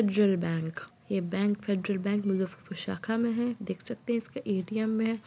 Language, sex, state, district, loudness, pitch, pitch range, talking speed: Hindi, female, Bihar, Muzaffarpur, -31 LUFS, 205 Hz, 190-225 Hz, 180 wpm